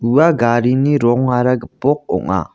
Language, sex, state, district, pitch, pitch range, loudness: Garo, male, Meghalaya, West Garo Hills, 125 Hz, 120-145 Hz, -15 LUFS